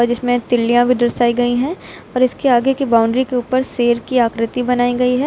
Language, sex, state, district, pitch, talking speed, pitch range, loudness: Hindi, female, Uttar Pradesh, Lucknow, 245 Hz, 215 wpm, 240-255 Hz, -16 LUFS